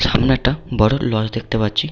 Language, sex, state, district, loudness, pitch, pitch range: Bengali, male, West Bengal, Paschim Medinipur, -18 LUFS, 120 Hz, 110-130 Hz